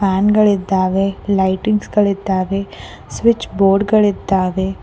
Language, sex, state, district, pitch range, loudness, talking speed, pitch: Kannada, female, Karnataka, Koppal, 190-205 Hz, -16 LUFS, 85 wpm, 195 Hz